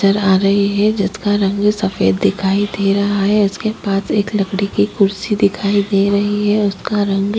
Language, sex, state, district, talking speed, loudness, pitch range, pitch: Hindi, female, Chhattisgarh, Kabirdham, 195 wpm, -16 LUFS, 195-205 Hz, 200 Hz